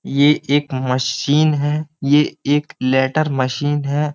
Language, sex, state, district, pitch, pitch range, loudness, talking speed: Hindi, male, Uttar Pradesh, Jyotiba Phule Nagar, 145 Hz, 130-150 Hz, -17 LUFS, 130 wpm